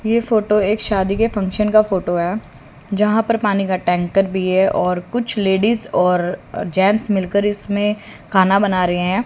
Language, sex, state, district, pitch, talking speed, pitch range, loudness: Hindi, female, Haryana, Rohtak, 195 Hz, 175 wpm, 185-210 Hz, -17 LUFS